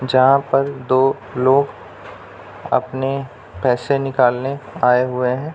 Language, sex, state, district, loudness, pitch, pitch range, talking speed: Hindi, male, Bihar, Jamui, -18 LUFS, 130 Hz, 125-135 Hz, 110 wpm